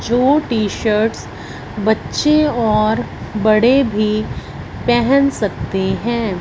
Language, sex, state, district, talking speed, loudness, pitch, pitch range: Hindi, female, Punjab, Fazilka, 95 wpm, -16 LUFS, 220 Hz, 215-245 Hz